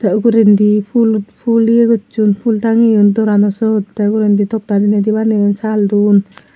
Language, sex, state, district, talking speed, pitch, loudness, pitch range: Chakma, female, Tripura, Unakoti, 155 wpm, 210 Hz, -12 LUFS, 205-225 Hz